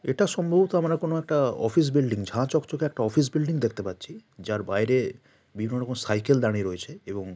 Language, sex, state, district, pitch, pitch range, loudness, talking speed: Bengali, male, West Bengal, Paschim Medinipur, 130 Hz, 105-155 Hz, -26 LUFS, 180 wpm